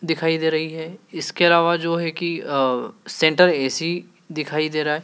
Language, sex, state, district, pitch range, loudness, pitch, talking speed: Hindi, male, Madhya Pradesh, Dhar, 155-170 Hz, -20 LUFS, 160 Hz, 190 wpm